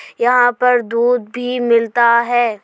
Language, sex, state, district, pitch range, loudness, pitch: Hindi, female, Uttar Pradesh, Hamirpur, 235-245 Hz, -14 LUFS, 240 Hz